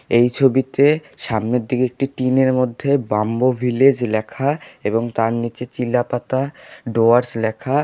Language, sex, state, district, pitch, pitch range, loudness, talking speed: Bengali, male, West Bengal, Alipurduar, 125 Hz, 115-135 Hz, -19 LUFS, 130 wpm